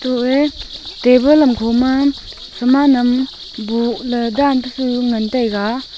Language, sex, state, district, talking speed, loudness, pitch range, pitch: Wancho, female, Arunachal Pradesh, Longding, 140 wpm, -15 LUFS, 235-270 Hz, 250 Hz